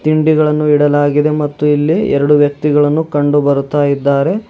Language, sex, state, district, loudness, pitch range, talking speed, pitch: Kannada, male, Karnataka, Bidar, -12 LUFS, 145-155 Hz, 105 wpm, 145 Hz